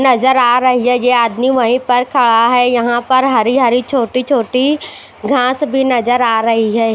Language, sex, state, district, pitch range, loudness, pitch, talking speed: Hindi, female, Bihar, West Champaran, 240-260 Hz, -12 LUFS, 245 Hz, 170 wpm